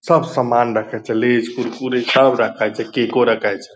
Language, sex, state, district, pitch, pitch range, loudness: Angika, male, Bihar, Purnia, 125 Hz, 120-130 Hz, -17 LUFS